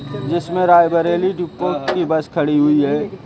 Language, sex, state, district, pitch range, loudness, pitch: Hindi, male, Uttar Pradesh, Lucknow, 150-175 Hz, -17 LUFS, 165 Hz